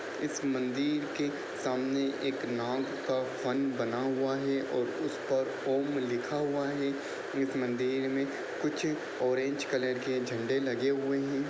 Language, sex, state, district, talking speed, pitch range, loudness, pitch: Hindi, male, Bihar, Lakhisarai, 155 wpm, 130-140 Hz, -32 LUFS, 135 Hz